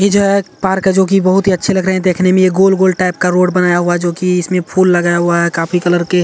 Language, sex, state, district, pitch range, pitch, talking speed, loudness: Hindi, male, Bihar, Saharsa, 175-190 Hz, 185 Hz, 335 wpm, -12 LUFS